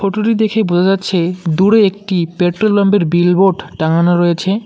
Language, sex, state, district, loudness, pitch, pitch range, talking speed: Bengali, male, West Bengal, Cooch Behar, -13 LUFS, 185 Hz, 175-200 Hz, 165 wpm